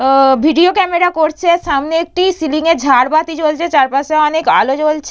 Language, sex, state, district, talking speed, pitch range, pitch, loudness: Bengali, female, West Bengal, Purulia, 150 wpm, 300-345 Hz, 315 Hz, -12 LUFS